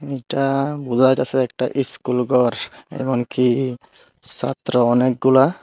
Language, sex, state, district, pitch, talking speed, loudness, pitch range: Bengali, male, Tripura, Unakoti, 130 Hz, 95 wpm, -19 LUFS, 125-135 Hz